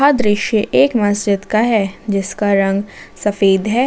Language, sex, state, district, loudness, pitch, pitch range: Hindi, female, Jharkhand, Ranchi, -16 LUFS, 205 Hz, 195-220 Hz